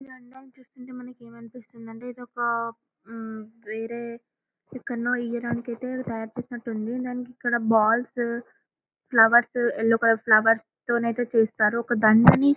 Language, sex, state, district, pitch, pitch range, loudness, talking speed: Telugu, female, Telangana, Karimnagar, 235 Hz, 225-245 Hz, -23 LUFS, 115 wpm